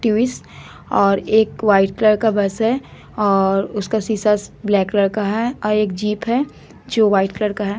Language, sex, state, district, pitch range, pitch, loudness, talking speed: Hindi, female, Jharkhand, Sahebganj, 200-220 Hz, 210 Hz, -18 LUFS, 195 wpm